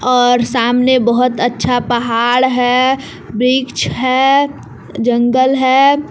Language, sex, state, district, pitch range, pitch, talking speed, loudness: Hindi, female, Jharkhand, Palamu, 245-260 Hz, 250 Hz, 100 wpm, -13 LUFS